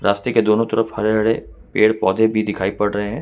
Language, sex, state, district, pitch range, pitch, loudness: Hindi, male, Jharkhand, Ranchi, 105-110 Hz, 110 Hz, -18 LUFS